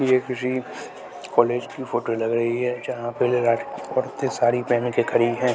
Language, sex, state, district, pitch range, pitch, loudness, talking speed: Hindi, male, Bihar, West Champaran, 120-125 Hz, 120 Hz, -23 LUFS, 175 wpm